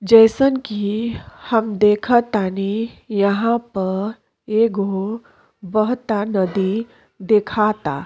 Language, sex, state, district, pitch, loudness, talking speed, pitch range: Bhojpuri, female, Uttar Pradesh, Deoria, 215 Hz, -19 LUFS, 75 wpm, 200-230 Hz